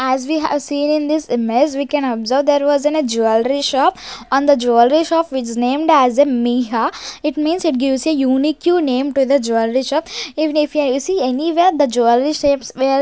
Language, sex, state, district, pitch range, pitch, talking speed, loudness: English, female, Punjab, Kapurthala, 255-300 Hz, 280 Hz, 210 wpm, -16 LUFS